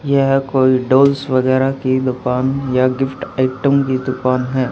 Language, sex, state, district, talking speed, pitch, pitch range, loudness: Hindi, male, Haryana, Charkhi Dadri, 150 wpm, 130 Hz, 130-135 Hz, -16 LUFS